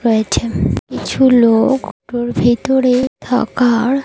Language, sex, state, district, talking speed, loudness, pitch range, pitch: Bengali, female, Odisha, Malkangiri, 105 wpm, -15 LUFS, 235-260 Hz, 245 Hz